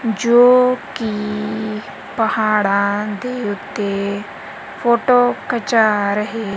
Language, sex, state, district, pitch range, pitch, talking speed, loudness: Punjabi, female, Punjab, Kapurthala, 205-240 Hz, 215 Hz, 75 wpm, -17 LUFS